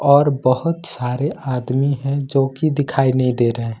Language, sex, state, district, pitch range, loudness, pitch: Hindi, male, Jharkhand, Ranchi, 130-145 Hz, -18 LUFS, 135 Hz